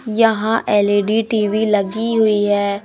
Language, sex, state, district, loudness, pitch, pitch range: Hindi, male, Madhya Pradesh, Umaria, -16 LUFS, 215 Hz, 205-225 Hz